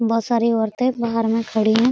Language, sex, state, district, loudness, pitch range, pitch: Hindi, female, Bihar, Araria, -20 LUFS, 225-235 Hz, 230 Hz